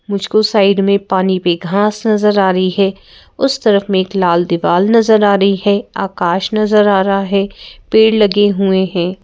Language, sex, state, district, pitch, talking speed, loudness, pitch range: Hindi, female, Madhya Pradesh, Bhopal, 200 Hz, 190 wpm, -13 LUFS, 190-210 Hz